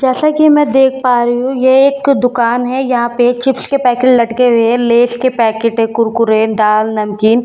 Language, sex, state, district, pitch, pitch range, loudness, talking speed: Hindi, female, Bihar, Katihar, 245 Hz, 230-260 Hz, -11 LUFS, 215 wpm